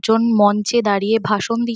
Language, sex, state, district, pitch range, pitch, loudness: Bengali, female, West Bengal, North 24 Parganas, 205-230 Hz, 225 Hz, -17 LUFS